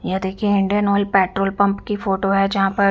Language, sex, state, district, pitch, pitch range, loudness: Hindi, female, Punjab, Fazilka, 195 Hz, 195-200 Hz, -19 LUFS